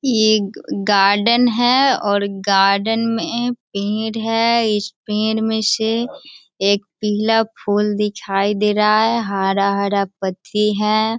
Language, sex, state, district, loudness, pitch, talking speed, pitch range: Hindi, female, Bihar, Sitamarhi, -17 LUFS, 210 Hz, 120 wpm, 200-225 Hz